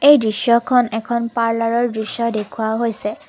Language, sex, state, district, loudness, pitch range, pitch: Assamese, female, Assam, Kamrup Metropolitan, -18 LUFS, 220-240 Hz, 230 Hz